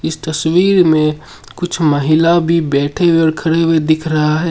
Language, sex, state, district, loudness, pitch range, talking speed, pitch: Hindi, male, Assam, Sonitpur, -13 LUFS, 155-170 Hz, 185 wpm, 160 Hz